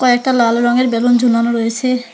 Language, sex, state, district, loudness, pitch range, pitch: Bengali, female, West Bengal, Alipurduar, -14 LUFS, 230-250 Hz, 240 Hz